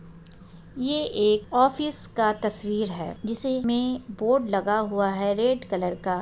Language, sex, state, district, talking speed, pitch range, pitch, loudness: Hindi, female, Chhattisgarh, Raigarh, 145 wpm, 200-250 Hz, 215 Hz, -25 LUFS